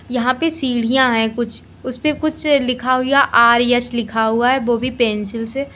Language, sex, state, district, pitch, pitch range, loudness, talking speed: Hindi, female, Uttar Pradesh, Lalitpur, 250 Hz, 235-265 Hz, -16 LUFS, 175 wpm